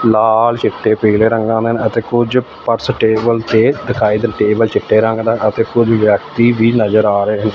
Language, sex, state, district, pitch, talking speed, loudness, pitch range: Punjabi, male, Punjab, Fazilka, 115 Hz, 175 wpm, -13 LUFS, 110-115 Hz